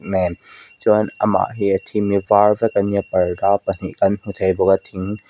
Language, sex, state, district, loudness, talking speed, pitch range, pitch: Mizo, female, Mizoram, Aizawl, -18 LUFS, 215 wpm, 95-105 Hz, 100 Hz